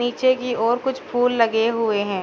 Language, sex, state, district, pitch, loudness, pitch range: Hindi, female, Bihar, Darbhanga, 240 Hz, -20 LUFS, 225-245 Hz